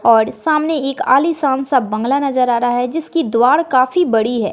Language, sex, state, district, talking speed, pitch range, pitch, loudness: Hindi, female, Bihar, West Champaran, 200 wpm, 240-305 Hz, 265 Hz, -15 LUFS